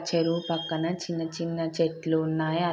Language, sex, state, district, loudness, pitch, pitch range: Telugu, female, Andhra Pradesh, Srikakulam, -28 LUFS, 165 Hz, 160-170 Hz